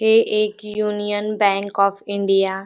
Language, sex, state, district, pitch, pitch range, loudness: Marathi, female, Maharashtra, Dhule, 205 Hz, 200-215 Hz, -19 LUFS